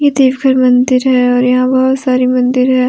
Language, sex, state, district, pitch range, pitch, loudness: Hindi, female, Jharkhand, Deoghar, 250-260 Hz, 255 Hz, -11 LUFS